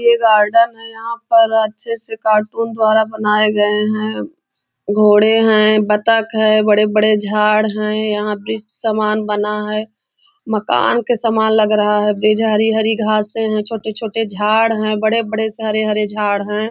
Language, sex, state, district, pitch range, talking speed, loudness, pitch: Hindi, female, Maharashtra, Nagpur, 210-225 Hz, 160 wpm, -15 LUFS, 215 Hz